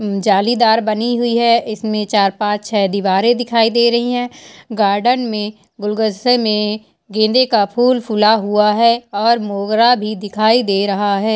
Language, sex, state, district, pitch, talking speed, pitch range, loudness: Hindi, female, Uttarakhand, Uttarkashi, 215 Hz, 160 wpm, 205-235 Hz, -15 LUFS